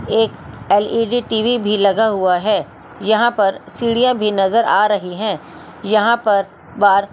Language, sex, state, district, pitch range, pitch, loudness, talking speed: Hindi, female, Delhi, New Delhi, 200-230 Hz, 210 Hz, -16 LUFS, 150 wpm